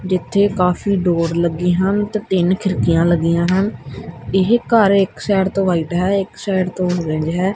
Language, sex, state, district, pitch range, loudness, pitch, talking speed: Punjabi, male, Punjab, Kapurthala, 175-195 Hz, -17 LUFS, 185 Hz, 175 wpm